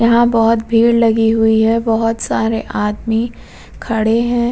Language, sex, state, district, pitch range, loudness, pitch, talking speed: Hindi, female, Uttar Pradesh, Muzaffarnagar, 225-230 Hz, -14 LUFS, 225 Hz, 145 wpm